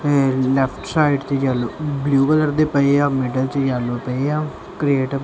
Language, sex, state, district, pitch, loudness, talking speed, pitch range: Punjabi, male, Punjab, Kapurthala, 140 Hz, -19 LUFS, 160 wpm, 130-145 Hz